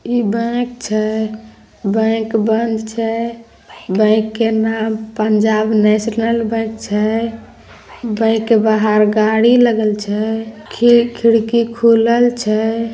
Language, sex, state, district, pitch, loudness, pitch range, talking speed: Hindi, female, Bihar, Begusarai, 225 Hz, -15 LUFS, 215-230 Hz, 100 wpm